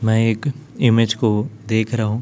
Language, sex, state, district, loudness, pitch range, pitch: Hindi, male, Chhattisgarh, Raipur, -19 LUFS, 110-120 Hz, 115 Hz